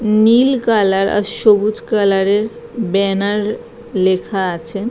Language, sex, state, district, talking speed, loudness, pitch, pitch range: Bengali, female, West Bengal, Purulia, 100 wpm, -15 LUFS, 210 Hz, 195-220 Hz